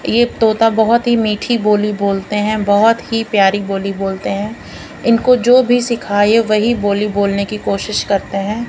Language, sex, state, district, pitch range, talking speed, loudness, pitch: Hindi, female, Odisha, Khordha, 200-230 Hz, 175 wpm, -14 LUFS, 215 Hz